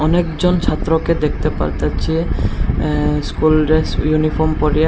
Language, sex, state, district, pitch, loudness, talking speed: Bengali, male, Tripura, Unakoti, 155 Hz, -17 LUFS, 125 wpm